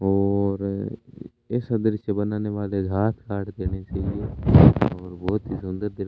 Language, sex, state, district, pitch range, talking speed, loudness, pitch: Hindi, male, Rajasthan, Bikaner, 95-110 Hz, 160 wpm, -23 LUFS, 100 Hz